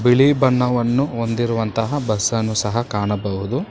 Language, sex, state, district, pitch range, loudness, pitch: Kannada, male, Karnataka, Bangalore, 110-125 Hz, -19 LUFS, 120 Hz